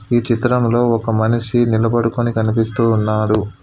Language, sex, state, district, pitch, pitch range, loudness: Telugu, male, Telangana, Hyderabad, 115 Hz, 110-120 Hz, -16 LUFS